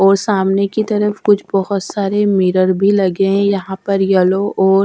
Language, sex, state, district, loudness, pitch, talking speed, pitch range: Hindi, female, Haryana, Rohtak, -15 LUFS, 195 Hz, 185 wpm, 190-200 Hz